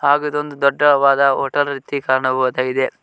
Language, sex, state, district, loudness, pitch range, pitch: Kannada, male, Karnataka, Koppal, -17 LUFS, 130-145 Hz, 140 Hz